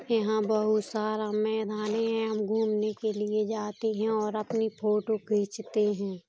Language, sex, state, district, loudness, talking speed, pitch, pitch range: Bundeli, female, Uttar Pradesh, Jalaun, -29 LUFS, 155 wpm, 215 Hz, 210-220 Hz